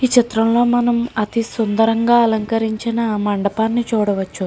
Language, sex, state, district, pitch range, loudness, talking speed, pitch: Telugu, female, Andhra Pradesh, Srikakulam, 215-235 Hz, -17 LUFS, 105 wpm, 225 Hz